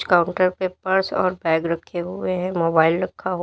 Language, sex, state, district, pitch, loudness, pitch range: Hindi, female, Uttar Pradesh, Lalitpur, 180 Hz, -21 LUFS, 170-185 Hz